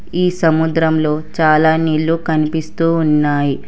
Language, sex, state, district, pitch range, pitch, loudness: Telugu, male, Telangana, Hyderabad, 155-165 Hz, 160 Hz, -15 LUFS